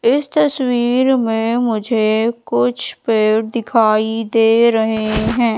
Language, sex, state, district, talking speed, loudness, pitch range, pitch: Hindi, female, Madhya Pradesh, Katni, 105 wpm, -16 LUFS, 220-240 Hz, 225 Hz